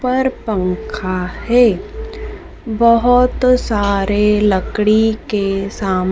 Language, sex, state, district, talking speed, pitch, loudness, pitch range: Hindi, female, Madhya Pradesh, Dhar, 80 wpm, 215 Hz, -15 LUFS, 195-250 Hz